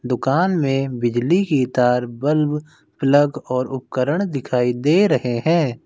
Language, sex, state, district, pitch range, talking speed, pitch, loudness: Hindi, male, Uttar Pradesh, Lucknow, 125-155 Hz, 135 wpm, 135 Hz, -19 LUFS